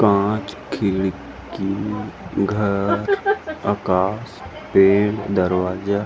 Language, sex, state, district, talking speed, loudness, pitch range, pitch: Chhattisgarhi, male, Chhattisgarh, Rajnandgaon, 60 wpm, -20 LUFS, 95-105 Hz, 100 Hz